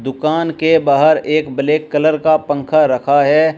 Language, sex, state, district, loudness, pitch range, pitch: Hindi, male, Uttar Pradesh, Shamli, -14 LUFS, 140-155 Hz, 155 Hz